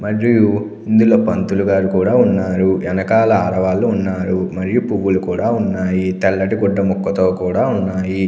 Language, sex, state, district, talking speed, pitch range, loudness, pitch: Telugu, male, Andhra Pradesh, Anantapur, 125 wpm, 95-100 Hz, -16 LUFS, 95 Hz